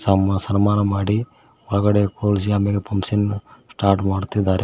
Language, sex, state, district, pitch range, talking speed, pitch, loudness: Kannada, male, Karnataka, Koppal, 100-105 Hz, 115 wpm, 100 Hz, -20 LUFS